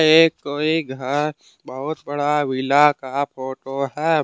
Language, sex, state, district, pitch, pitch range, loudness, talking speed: Hindi, male, Jharkhand, Deoghar, 145 Hz, 135-155 Hz, -20 LUFS, 115 wpm